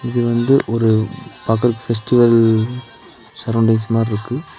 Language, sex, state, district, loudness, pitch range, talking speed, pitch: Tamil, male, Tamil Nadu, Nilgiris, -16 LUFS, 115-120 Hz, 90 wpm, 115 Hz